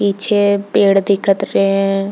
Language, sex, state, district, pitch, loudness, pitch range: Hindi, female, Chhattisgarh, Bilaspur, 200 Hz, -14 LUFS, 195-200 Hz